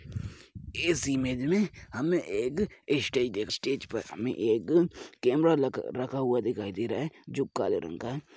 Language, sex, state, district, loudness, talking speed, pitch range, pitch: Hindi, male, Bihar, Purnia, -30 LUFS, 165 wpm, 125-175 Hz, 145 Hz